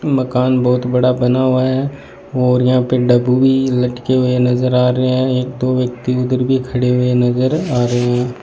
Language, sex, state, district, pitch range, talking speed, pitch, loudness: Hindi, male, Rajasthan, Bikaner, 125-130 Hz, 190 wpm, 125 Hz, -15 LUFS